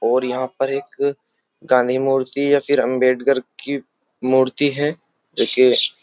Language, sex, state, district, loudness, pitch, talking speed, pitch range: Hindi, male, Uttar Pradesh, Jyotiba Phule Nagar, -18 LUFS, 135 Hz, 150 wpm, 130-145 Hz